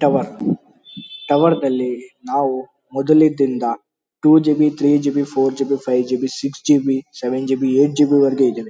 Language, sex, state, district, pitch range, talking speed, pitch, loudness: Kannada, male, Karnataka, Bellary, 130-145 Hz, 195 wpm, 135 Hz, -17 LUFS